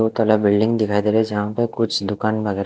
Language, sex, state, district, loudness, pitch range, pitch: Hindi, male, Odisha, Khordha, -19 LUFS, 105-110 Hz, 110 Hz